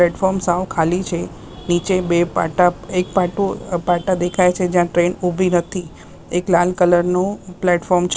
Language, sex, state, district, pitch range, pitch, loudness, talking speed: Gujarati, female, Maharashtra, Mumbai Suburban, 175-185 Hz, 180 Hz, -18 LUFS, 160 wpm